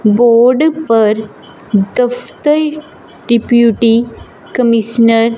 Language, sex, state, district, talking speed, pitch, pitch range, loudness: Hindi, female, Punjab, Fazilka, 65 wpm, 235 Hz, 225-250 Hz, -12 LUFS